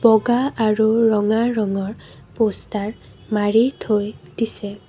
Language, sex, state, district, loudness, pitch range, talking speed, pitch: Assamese, female, Assam, Kamrup Metropolitan, -20 LUFS, 210-230 Hz, 100 wpm, 220 Hz